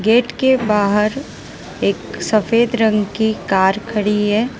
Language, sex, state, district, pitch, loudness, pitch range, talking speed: Hindi, female, Gujarat, Valsad, 215 Hz, -17 LUFS, 210-235 Hz, 130 wpm